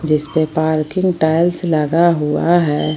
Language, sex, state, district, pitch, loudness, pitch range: Hindi, female, Jharkhand, Ranchi, 160 Hz, -16 LUFS, 155-170 Hz